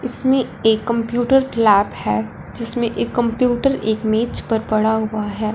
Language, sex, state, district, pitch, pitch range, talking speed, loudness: Hindi, female, Punjab, Fazilka, 225 Hz, 215-245 Hz, 150 wpm, -18 LUFS